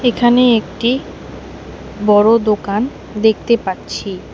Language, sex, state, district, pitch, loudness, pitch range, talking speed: Bengali, female, West Bengal, Alipurduar, 220 Hz, -15 LUFS, 205-240 Hz, 85 wpm